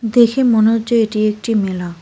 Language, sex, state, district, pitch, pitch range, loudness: Bengali, female, West Bengal, Cooch Behar, 220 Hz, 210-230 Hz, -15 LUFS